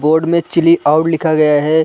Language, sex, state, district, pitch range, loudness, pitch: Hindi, male, Bihar, Sitamarhi, 155-165 Hz, -13 LUFS, 160 Hz